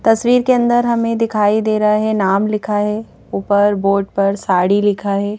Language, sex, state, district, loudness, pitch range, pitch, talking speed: Hindi, female, Madhya Pradesh, Bhopal, -15 LUFS, 200-225 Hz, 210 Hz, 190 wpm